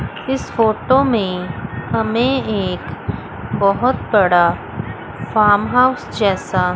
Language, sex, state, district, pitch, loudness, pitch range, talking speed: Hindi, female, Chandigarh, Chandigarh, 210 Hz, -17 LUFS, 185-250 Hz, 90 wpm